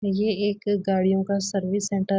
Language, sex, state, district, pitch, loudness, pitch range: Hindi, female, Uttarakhand, Uttarkashi, 200 Hz, -24 LUFS, 195-205 Hz